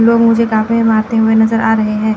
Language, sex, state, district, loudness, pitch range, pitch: Hindi, female, Chandigarh, Chandigarh, -12 LUFS, 220-230 Hz, 225 Hz